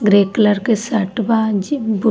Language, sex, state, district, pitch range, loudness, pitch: Bhojpuri, female, Bihar, East Champaran, 205-225 Hz, -16 LUFS, 220 Hz